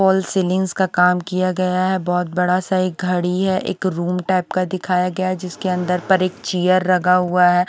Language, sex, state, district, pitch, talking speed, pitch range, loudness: Hindi, female, Haryana, Rohtak, 185 Hz, 220 wpm, 180-185 Hz, -18 LUFS